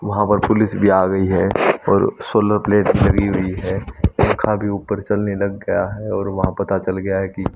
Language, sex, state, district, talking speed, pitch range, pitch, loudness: Hindi, male, Haryana, Rohtak, 215 wpm, 95-105 Hz, 100 Hz, -18 LUFS